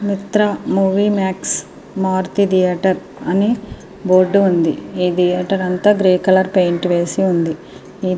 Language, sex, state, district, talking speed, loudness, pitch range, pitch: Telugu, female, Andhra Pradesh, Srikakulam, 130 wpm, -16 LUFS, 180-195 Hz, 190 Hz